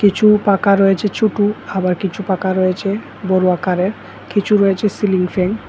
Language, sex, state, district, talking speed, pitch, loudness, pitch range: Bengali, male, Tripura, West Tripura, 160 wpm, 195 Hz, -16 LUFS, 185-205 Hz